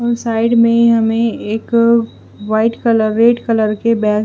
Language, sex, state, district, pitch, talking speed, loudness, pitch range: Hindi, female, Bihar, West Champaran, 230 Hz, 170 wpm, -14 LUFS, 220-235 Hz